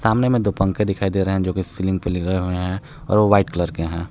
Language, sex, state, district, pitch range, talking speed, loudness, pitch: Hindi, male, Jharkhand, Palamu, 90-105 Hz, 290 wpm, -20 LUFS, 95 Hz